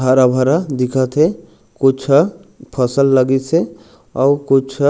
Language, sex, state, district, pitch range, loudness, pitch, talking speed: Chhattisgarhi, male, Chhattisgarh, Raigarh, 130-145 Hz, -15 LUFS, 135 Hz, 110 wpm